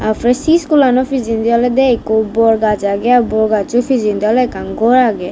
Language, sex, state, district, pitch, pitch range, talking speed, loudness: Chakma, female, Tripura, West Tripura, 235 Hz, 220-255 Hz, 170 wpm, -13 LUFS